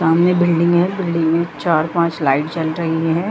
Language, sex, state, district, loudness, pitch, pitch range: Hindi, female, Jharkhand, Jamtara, -17 LUFS, 170 Hz, 160-175 Hz